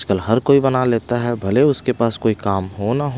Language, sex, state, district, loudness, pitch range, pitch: Hindi, male, Punjab, Pathankot, -18 LUFS, 105-130 Hz, 120 Hz